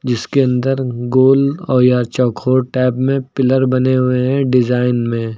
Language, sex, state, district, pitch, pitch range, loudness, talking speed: Hindi, male, Uttar Pradesh, Lucknow, 130 Hz, 125-130 Hz, -15 LUFS, 155 wpm